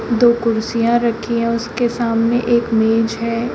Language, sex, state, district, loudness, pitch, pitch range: Hindi, female, Uttar Pradesh, Shamli, -17 LUFS, 230 Hz, 230-235 Hz